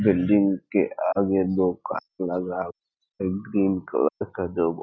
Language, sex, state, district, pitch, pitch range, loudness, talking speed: Hindi, male, Bihar, Muzaffarpur, 95 Hz, 90-95 Hz, -25 LUFS, 160 wpm